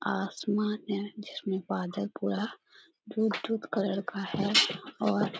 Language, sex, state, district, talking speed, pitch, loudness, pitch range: Hindi, female, Jharkhand, Sahebganj, 120 wpm, 200 Hz, -31 LUFS, 195-210 Hz